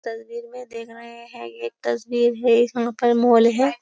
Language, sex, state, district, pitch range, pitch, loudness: Hindi, female, Uttar Pradesh, Jyotiba Phule Nagar, 230-240 Hz, 235 Hz, -19 LUFS